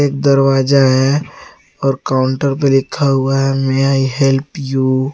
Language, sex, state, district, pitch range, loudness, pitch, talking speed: Hindi, male, Jharkhand, Garhwa, 135-140 Hz, -14 LUFS, 135 Hz, 150 wpm